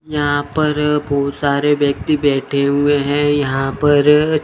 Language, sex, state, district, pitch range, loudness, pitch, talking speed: Hindi, male, Chandigarh, Chandigarh, 140-150 Hz, -16 LUFS, 145 Hz, 135 wpm